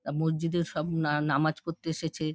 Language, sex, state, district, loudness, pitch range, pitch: Bengali, female, West Bengal, Dakshin Dinajpur, -30 LUFS, 155-165 Hz, 160 Hz